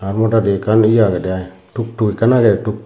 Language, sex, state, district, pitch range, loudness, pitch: Chakma, male, Tripura, Unakoti, 100-115 Hz, -15 LUFS, 110 Hz